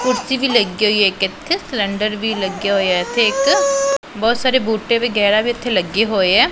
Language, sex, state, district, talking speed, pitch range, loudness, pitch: Punjabi, female, Punjab, Pathankot, 210 wpm, 200-255 Hz, -16 LUFS, 225 Hz